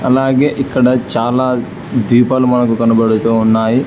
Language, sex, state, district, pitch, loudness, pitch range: Telugu, male, Telangana, Hyderabad, 125 Hz, -13 LUFS, 115-130 Hz